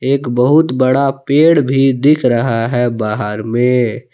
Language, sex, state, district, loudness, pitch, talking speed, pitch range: Hindi, male, Jharkhand, Palamu, -13 LUFS, 125 Hz, 145 wpm, 120-140 Hz